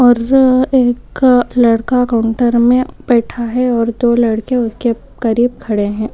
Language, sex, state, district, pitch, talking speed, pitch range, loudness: Hindi, female, Rajasthan, Nagaur, 240 Hz, 135 wpm, 230-250 Hz, -13 LUFS